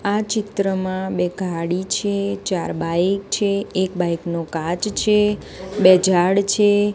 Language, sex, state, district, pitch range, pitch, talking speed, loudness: Gujarati, female, Gujarat, Gandhinagar, 180-205 Hz, 190 Hz, 275 wpm, -20 LUFS